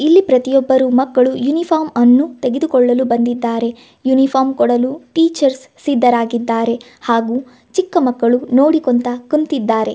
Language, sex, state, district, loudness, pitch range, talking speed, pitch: Kannada, female, Karnataka, Gulbarga, -15 LUFS, 240-280 Hz, 90 wpm, 255 Hz